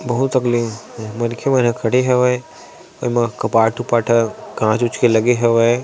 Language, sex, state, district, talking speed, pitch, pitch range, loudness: Chhattisgarhi, male, Chhattisgarh, Sarguja, 175 wpm, 120 Hz, 115-125 Hz, -17 LUFS